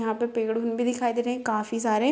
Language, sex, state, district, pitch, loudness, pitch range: Hindi, female, Bihar, Muzaffarpur, 230 Hz, -26 LUFS, 225-240 Hz